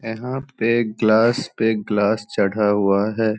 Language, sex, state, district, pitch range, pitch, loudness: Hindi, male, Bihar, Begusarai, 105-115 Hz, 110 Hz, -20 LUFS